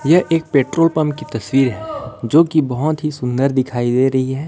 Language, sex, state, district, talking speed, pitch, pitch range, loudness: Hindi, male, Chhattisgarh, Raipur, 215 wpm, 140 Hz, 130-155 Hz, -17 LUFS